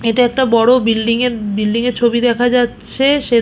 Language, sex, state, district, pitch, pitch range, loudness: Bengali, female, West Bengal, Purulia, 240 Hz, 230-250 Hz, -14 LUFS